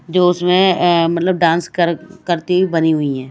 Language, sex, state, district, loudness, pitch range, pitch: Hindi, female, Odisha, Malkangiri, -15 LUFS, 165-180 Hz, 175 Hz